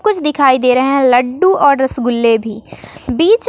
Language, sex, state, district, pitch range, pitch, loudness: Hindi, female, Bihar, West Champaran, 245-310 Hz, 265 Hz, -12 LUFS